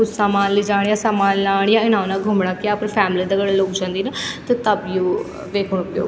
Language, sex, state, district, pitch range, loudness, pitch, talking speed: Garhwali, female, Uttarakhand, Tehri Garhwal, 195-210 Hz, -19 LUFS, 200 Hz, 215 wpm